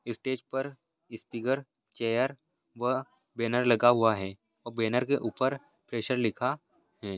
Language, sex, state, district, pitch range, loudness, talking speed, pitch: Hindi, male, Maharashtra, Sindhudurg, 115-135 Hz, -30 LUFS, 140 wpm, 120 Hz